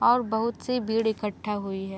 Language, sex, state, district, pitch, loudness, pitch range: Hindi, female, Uttar Pradesh, Deoria, 220 Hz, -27 LUFS, 205-235 Hz